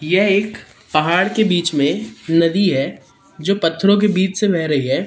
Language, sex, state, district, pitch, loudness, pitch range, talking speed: Hindi, male, Madhya Pradesh, Katni, 180 Hz, -17 LUFS, 155-195 Hz, 190 wpm